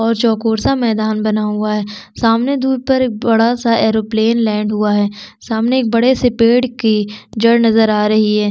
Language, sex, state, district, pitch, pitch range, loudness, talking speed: Hindi, female, Chhattisgarh, Sukma, 225 Hz, 215-235 Hz, -14 LUFS, 190 wpm